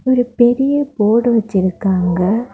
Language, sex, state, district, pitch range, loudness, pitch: Tamil, female, Tamil Nadu, Kanyakumari, 190-245 Hz, -15 LUFS, 230 Hz